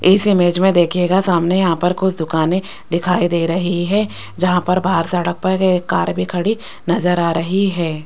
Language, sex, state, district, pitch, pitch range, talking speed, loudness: Hindi, female, Rajasthan, Jaipur, 180 Hz, 170-185 Hz, 195 wpm, -17 LUFS